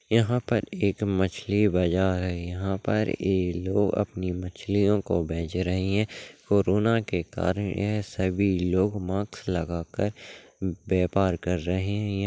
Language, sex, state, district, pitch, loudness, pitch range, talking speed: Hindi, male, Rajasthan, Churu, 95 Hz, -26 LUFS, 90-100 Hz, 135 wpm